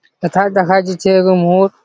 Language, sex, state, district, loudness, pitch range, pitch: Bengali, male, West Bengal, Jhargram, -13 LUFS, 185-195 Hz, 190 Hz